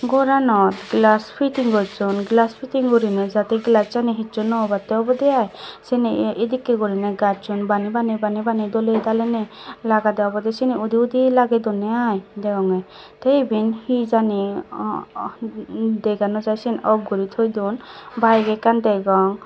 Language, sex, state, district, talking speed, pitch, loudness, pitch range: Chakma, female, Tripura, Dhalai, 150 wpm, 220 Hz, -20 LUFS, 210-235 Hz